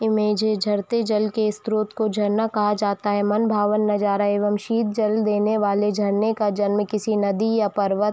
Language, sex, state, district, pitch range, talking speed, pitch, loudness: Hindi, female, Chhattisgarh, Raigarh, 205-215 Hz, 190 wpm, 210 Hz, -21 LUFS